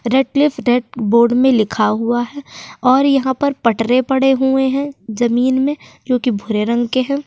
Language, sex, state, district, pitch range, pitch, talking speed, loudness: Hindi, female, Uttar Pradesh, Jyotiba Phule Nagar, 235-270 Hz, 255 Hz, 180 wpm, -16 LUFS